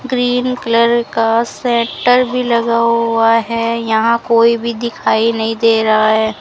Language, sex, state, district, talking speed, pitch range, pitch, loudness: Hindi, female, Rajasthan, Bikaner, 150 wpm, 225-235 Hz, 230 Hz, -14 LUFS